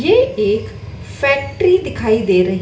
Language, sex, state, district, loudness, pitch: Hindi, female, Madhya Pradesh, Dhar, -15 LUFS, 285 Hz